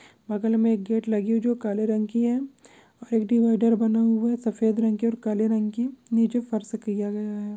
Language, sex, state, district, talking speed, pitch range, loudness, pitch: Hindi, male, Goa, North and South Goa, 220 wpm, 215-230 Hz, -24 LUFS, 225 Hz